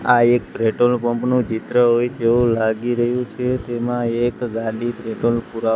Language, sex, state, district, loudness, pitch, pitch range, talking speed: Gujarati, male, Gujarat, Gandhinagar, -19 LUFS, 120 Hz, 115-120 Hz, 165 wpm